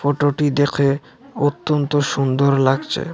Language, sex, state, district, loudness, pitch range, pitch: Bengali, male, Assam, Hailakandi, -18 LUFS, 140-145 Hz, 145 Hz